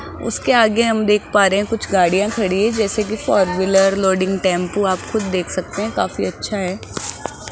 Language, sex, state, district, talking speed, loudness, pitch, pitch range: Hindi, female, Rajasthan, Jaipur, 200 wpm, -18 LUFS, 195 Hz, 185-215 Hz